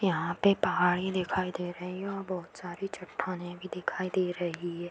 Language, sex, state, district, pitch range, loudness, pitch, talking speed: Hindi, female, Bihar, Bhagalpur, 175-185 Hz, -31 LUFS, 180 Hz, 195 wpm